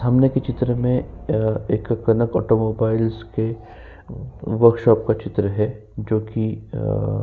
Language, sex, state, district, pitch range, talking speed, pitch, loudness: Hindi, male, Uttar Pradesh, Jyotiba Phule Nagar, 110-120 Hz, 140 wpm, 115 Hz, -21 LUFS